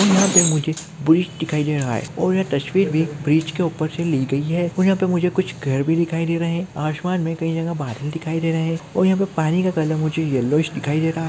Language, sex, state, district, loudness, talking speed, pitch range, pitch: Hindi, male, Chhattisgarh, Kabirdham, -20 LUFS, 275 wpm, 155-175 Hz, 160 Hz